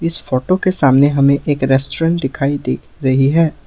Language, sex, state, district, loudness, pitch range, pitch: Hindi, male, Assam, Sonitpur, -15 LUFS, 135-165 Hz, 140 Hz